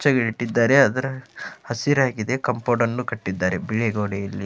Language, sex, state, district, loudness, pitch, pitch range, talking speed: Kannada, male, Karnataka, Dharwad, -22 LUFS, 120 Hz, 105-130 Hz, 120 wpm